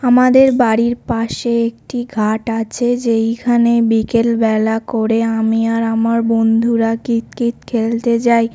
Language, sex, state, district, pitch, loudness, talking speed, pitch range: Bengali, male, West Bengal, North 24 Parganas, 230 Hz, -15 LUFS, 125 wpm, 225-235 Hz